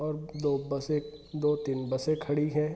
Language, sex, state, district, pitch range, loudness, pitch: Hindi, male, Bihar, East Champaran, 140-150 Hz, -31 LUFS, 150 Hz